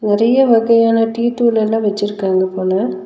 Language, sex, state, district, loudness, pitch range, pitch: Tamil, female, Tamil Nadu, Nilgiris, -14 LUFS, 195-230 Hz, 220 Hz